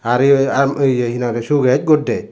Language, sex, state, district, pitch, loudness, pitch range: Chakma, male, Tripura, Dhalai, 135 Hz, -15 LUFS, 120-140 Hz